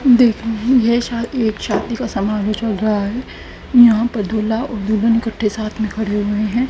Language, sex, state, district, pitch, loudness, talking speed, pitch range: Hindi, female, Haryana, Charkhi Dadri, 225 Hz, -17 LUFS, 190 wpm, 215-235 Hz